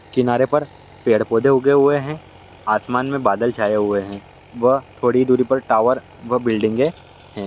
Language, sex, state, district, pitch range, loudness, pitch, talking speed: Hindi, male, Bihar, Lakhisarai, 105-130 Hz, -18 LUFS, 120 Hz, 170 wpm